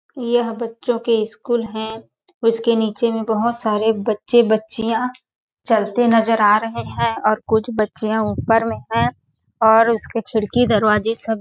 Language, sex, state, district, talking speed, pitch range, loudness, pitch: Hindi, female, Chhattisgarh, Sarguja, 150 wpm, 220-235 Hz, -18 LUFS, 225 Hz